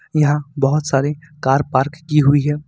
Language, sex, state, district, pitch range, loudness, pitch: Hindi, male, Jharkhand, Ranchi, 140-150 Hz, -17 LUFS, 145 Hz